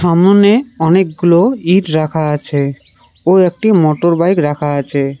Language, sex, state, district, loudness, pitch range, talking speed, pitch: Bengali, male, West Bengal, Cooch Behar, -12 LUFS, 145-185 Hz, 125 wpm, 165 Hz